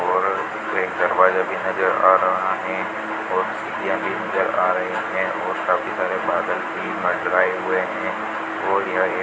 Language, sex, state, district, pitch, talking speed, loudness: Hindi, male, Rajasthan, Bikaner, 95 Hz, 170 wpm, -21 LUFS